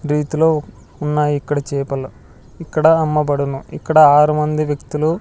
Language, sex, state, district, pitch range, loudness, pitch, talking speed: Telugu, male, Andhra Pradesh, Sri Satya Sai, 145-155 Hz, -16 LUFS, 150 Hz, 115 wpm